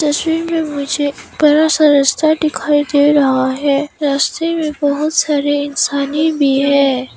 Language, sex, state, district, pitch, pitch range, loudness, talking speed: Hindi, female, Arunachal Pradesh, Papum Pare, 290 Hz, 280-310 Hz, -14 LUFS, 150 wpm